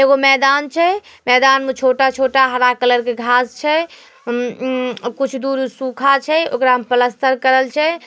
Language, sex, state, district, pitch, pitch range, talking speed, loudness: Magahi, female, Bihar, Samastipur, 265 Hz, 250-275 Hz, 165 wpm, -15 LUFS